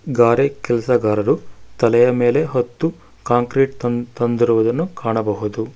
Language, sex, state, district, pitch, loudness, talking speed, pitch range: Kannada, male, Karnataka, Bangalore, 120 Hz, -18 LUFS, 95 wpm, 115-130 Hz